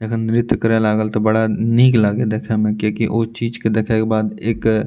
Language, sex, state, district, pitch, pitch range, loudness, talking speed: Maithili, male, Bihar, Madhepura, 110 Hz, 110-115 Hz, -17 LUFS, 235 wpm